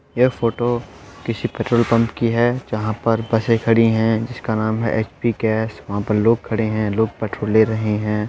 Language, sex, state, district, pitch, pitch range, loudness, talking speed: Hindi, male, Uttar Pradesh, Etah, 110 Hz, 110-115 Hz, -19 LUFS, 200 wpm